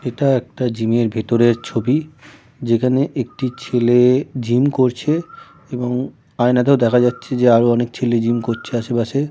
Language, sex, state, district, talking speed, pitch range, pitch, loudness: Bengali, male, West Bengal, Jalpaiguri, 140 wpm, 120-135 Hz, 125 Hz, -17 LUFS